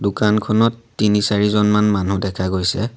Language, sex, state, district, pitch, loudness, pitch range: Assamese, male, Assam, Sonitpur, 105 Hz, -17 LUFS, 100-110 Hz